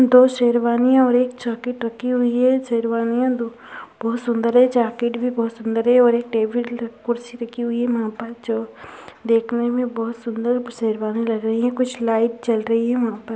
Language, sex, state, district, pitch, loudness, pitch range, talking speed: Hindi, female, Uttar Pradesh, Gorakhpur, 235 Hz, -20 LUFS, 230-245 Hz, 195 wpm